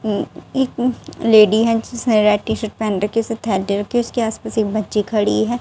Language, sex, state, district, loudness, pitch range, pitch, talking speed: Hindi, female, Haryana, Jhajjar, -18 LUFS, 210-240 Hz, 220 Hz, 180 wpm